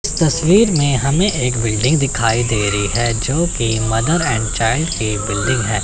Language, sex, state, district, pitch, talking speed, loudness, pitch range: Hindi, male, Chandigarh, Chandigarh, 120 Hz, 175 wpm, -16 LUFS, 110-155 Hz